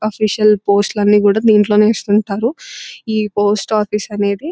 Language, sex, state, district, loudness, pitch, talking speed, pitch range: Telugu, female, Telangana, Nalgonda, -14 LUFS, 210 Hz, 130 wpm, 205-215 Hz